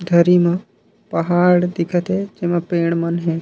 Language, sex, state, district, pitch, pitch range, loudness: Chhattisgarhi, male, Chhattisgarh, Raigarh, 175 Hz, 170-180 Hz, -18 LUFS